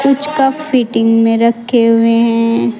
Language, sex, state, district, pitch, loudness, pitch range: Hindi, female, Uttar Pradesh, Saharanpur, 230 Hz, -12 LUFS, 230-265 Hz